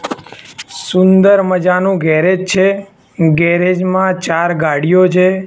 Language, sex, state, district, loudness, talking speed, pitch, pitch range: Gujarati, male, Gujarat, Gandhinagar, -12 LUFS, 100 wpm, 185 Hz, 170-190 Hz